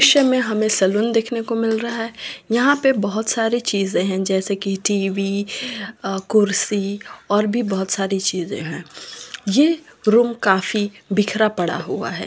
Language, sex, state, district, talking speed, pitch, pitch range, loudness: Hindi, female, Chhattisgarh, Sarguja, 165 wpm, 210 Hz, 195-230 Hz, -20 LUFS